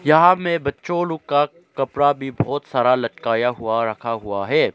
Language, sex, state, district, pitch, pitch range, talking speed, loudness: Hindi, male, Arunachal Pradesh, Lower Dibang Valley, 140 Hz, 115-155 Hz, 175 wpm, -20 LUFS